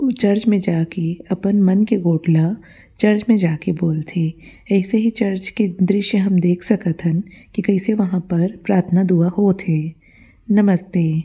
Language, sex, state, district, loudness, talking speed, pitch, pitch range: Chhattisgarhi, female, Chhattisgarh, Rajnandgaon, -18 LUFS, 170 wpm, 190 Hz, 170-205 Hz